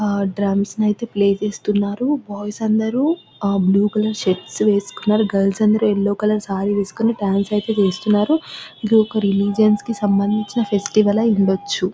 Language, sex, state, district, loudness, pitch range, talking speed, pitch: Telugu, female, Telangana, Nalgonda, -18 LUFS, 200-215 Hz, 140 wpm, 210 Hz